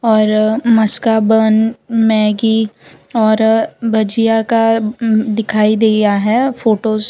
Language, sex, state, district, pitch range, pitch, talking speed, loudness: Hindi, female, Gujarat, Valsad, 215-225 Hz, 220 Hz, 100 wpm, -13 LUFS